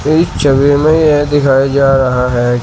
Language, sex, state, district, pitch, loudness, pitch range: Hindi, male, Uttar Pradesh, Shamli, 140 Hz, -11 LUFS, 135-145 Hz